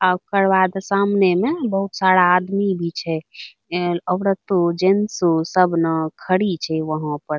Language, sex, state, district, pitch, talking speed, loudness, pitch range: Angika, female, Bihar, Bhagalpur, 180 Hz, 170 wpm, -19 LUFS, 165-195 Hz